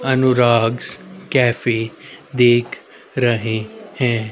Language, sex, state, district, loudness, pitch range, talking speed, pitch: Hindi, male, Haryana, Rohtak, -17 LUFS, 115-130 Hz, 70 wpm, 120 Hz